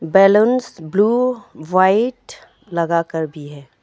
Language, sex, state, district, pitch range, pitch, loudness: Hindi, female, Arunachal Pradesh, Longding, 160-225 Hz, 185 Hz, -17 LUFS